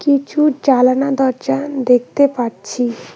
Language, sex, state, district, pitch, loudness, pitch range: Bengali, female, West Bengal, Cooch Behar, 270 Hz, -16 LUFS, 250-280 Hz